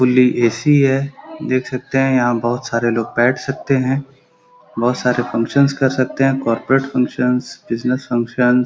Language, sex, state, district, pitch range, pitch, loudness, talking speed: Hindi, male, Uttar Pradesh, Gorakhpur, 120-135 Hz, 130 Hz, -17 LUFS, 165 wpm